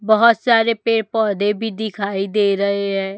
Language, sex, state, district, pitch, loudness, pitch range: Hindi, female, Chhattisgarh, Raipur, 210 Hz, -18 LUFS, 200-225 Hz